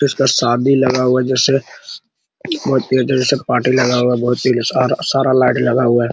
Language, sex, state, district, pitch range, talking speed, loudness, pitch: Hindi, male, Bihar, Araria, 125-135 Hz, 225 wpm, -15 LUFS, 130 Hz